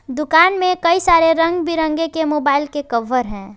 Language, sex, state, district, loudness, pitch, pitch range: Hindi, female, Jharkhand, Garhwa, -16 LUFS, 320 Hz, 285-335 Hz